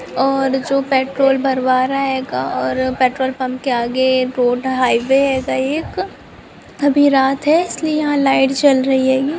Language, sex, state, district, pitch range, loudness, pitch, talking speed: Hindi, female, Bihar, Gopalganj, 260-275 Hz, -16 LUFS, 265 Hz, 160 wpm